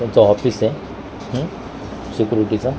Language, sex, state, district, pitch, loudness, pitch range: Marathi, male, Maharashtra, Mumbai Suburban, 110 Hz, -19 LUFS, 105-125 Hz